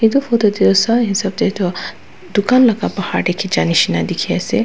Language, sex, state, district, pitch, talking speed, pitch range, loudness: Nagamese, female, Nagaland, Dimapur, 210 Hz, 180 wpm, 195-235 Hz, -15 LUFS